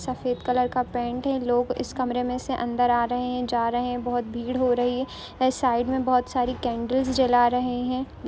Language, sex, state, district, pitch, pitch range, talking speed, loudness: Hindi, female, Uttar Pradesh, Ghazipur, 250 Hz, 245-255 Hz, 215 wpm, -25 LUFS